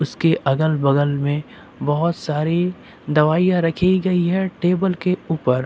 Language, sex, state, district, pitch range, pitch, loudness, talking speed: Hindi, male, Uttar Pradesh, Lucknow, 150-180 Hz, 165 Hz, -19 LUFS, 140 wpm